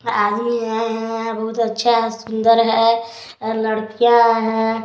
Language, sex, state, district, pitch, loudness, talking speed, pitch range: Hindi, male, Chhattisgarh, Balrampur, 225 Hz, -17 LUFS, 135 wpm, 225-230 Hz